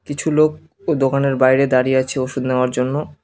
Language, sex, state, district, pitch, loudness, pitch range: Bengali, male, West Bengal, Cooch Behar, 135 Hz, -17 LUFS, 130-150 Hz